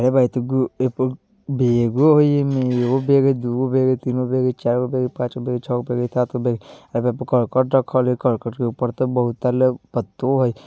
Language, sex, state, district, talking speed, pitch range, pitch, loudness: Bajjika, male, Bihar, Vaishali, 165 wpm, 125-130 Hz, 125 Hz, -20 LUFS